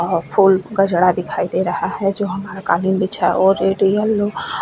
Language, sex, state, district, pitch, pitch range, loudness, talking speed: Hindi, female, Goa, North and South Goa, 195 Hz, 190-205 Hz, -17 LUFS, 195 wpm